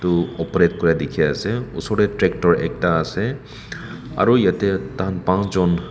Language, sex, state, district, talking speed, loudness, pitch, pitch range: Nagamese, male, Nagaland, Kohima, 130 wpm, -20 LUFS, 95 Hz, 85-100 Hz